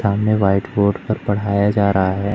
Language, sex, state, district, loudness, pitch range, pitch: Hindi, male, Madhya Pradesh, Umaria, -18 LUFS, 100-105 Hz, 100 Hz